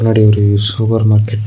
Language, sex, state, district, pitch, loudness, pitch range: Tamil, male, Tamil Nadu, Nilgiris, 110 Hz, -12 LUFS, 105-110 Hz